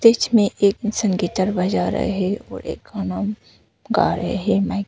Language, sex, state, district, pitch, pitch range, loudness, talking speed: Hindi, female, Arunachal Pradesh, Papum Pare, 200 Hz, 190-215 Hz, -21 LUFS, 210 wpm